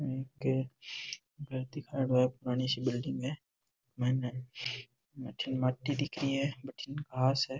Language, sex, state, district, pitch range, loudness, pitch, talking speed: Rajasthani, male, Rajasthan, Nagaur, 125-135 Hz, -35 LUFS, 130 Hz, 120 wpm